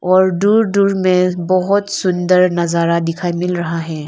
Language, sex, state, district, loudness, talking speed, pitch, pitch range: Hindi, female, Arunachal Pradesh, Lower Dibang Valley, -15 LUFS, 160 wpm, 180 Hz, 170-190 Hz